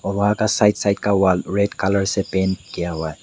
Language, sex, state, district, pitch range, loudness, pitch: Hindi, male, Meghalaya, West Garo Hills, 95-100 Hz, -19 LUFS, 100 Hz